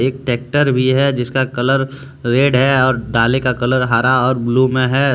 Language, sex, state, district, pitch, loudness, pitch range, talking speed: Hindi, male, Jharkhand, Deoghar, 130 Hz, -15 LUFS, 125-135 Hz, 195 wpm